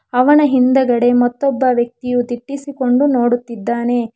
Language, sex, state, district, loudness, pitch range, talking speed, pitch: Kannada, female, Karnataka, Bangalore, -15 LUFS, 240-265 Hz, 85 wpm, 245 Hz